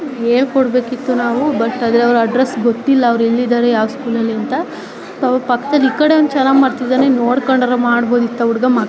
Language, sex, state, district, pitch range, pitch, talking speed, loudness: Kannada, female, Karnataka, Chamarajanagar, 235-265 Hz, 250 Hz, 175 wpm, -14 LUFS